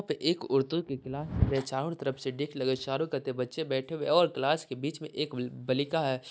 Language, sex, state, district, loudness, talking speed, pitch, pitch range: Hindi, male, Bihar, Sitamarhi, -31 LUFS, 235 wpm, 135 Hz, 130-155 Hz